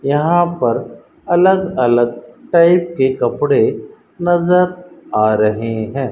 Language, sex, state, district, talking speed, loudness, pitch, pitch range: Hindi, male, Rajasthan, Bikaner, 110 wpm, -15 LUFS, 145 Hz, 120-175 Hz